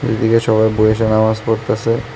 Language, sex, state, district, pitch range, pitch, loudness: Bengali, male, Tripura, West Tripura, 110-115 Hz, 110 Hz, -15 LUFS